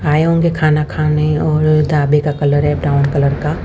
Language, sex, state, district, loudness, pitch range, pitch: Hindi, female, Haryana, Rohtak, -14 LUFS, 145-155 Hz, 150 Hz